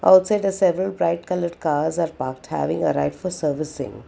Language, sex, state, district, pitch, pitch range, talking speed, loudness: English, female, Karnataka, Bangalore, 170 Hz, 145-185 Hz, 190 wpm, -22 LUFS